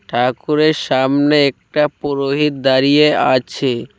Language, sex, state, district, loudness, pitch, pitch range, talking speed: Bengali, male, West Bengal, Cooch Behar, -15 LUFS, 140 Hz, 130-150 Hz, 90 wpm